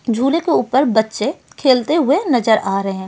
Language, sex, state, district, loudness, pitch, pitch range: Hindi, female, Delhi, New Delhi, -16 LUFS, 250 Hz, 220-280 Hz